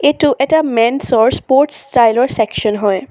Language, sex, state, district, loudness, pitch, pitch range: Assamese, female, Assam, Sonitpur, -13 LUFS, 250 Hz, 225-280 Hz